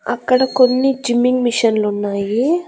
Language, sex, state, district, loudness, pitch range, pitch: Telugu, female, Andhra Pradesh, Annamaya, -16 LUFS, 225-260 Hz, 250 Hz